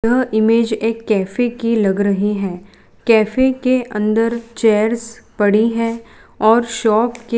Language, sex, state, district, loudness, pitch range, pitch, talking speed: Hindi, female, Gujarat, Valsad, -16 LUFS, 215-235 Hz, 225 Hz, 140 wpm